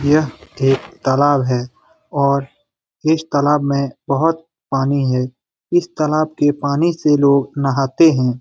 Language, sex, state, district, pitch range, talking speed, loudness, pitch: Hindi, male, Bihar, Lakhisarai, 135-155 Hz, 145 wpm, -17 LUFS, 140 Hz